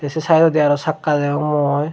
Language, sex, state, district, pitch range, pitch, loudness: Chakma, male, Tripura, Dhalai, 145-160 Hz, 150 Hz, -17 LUFS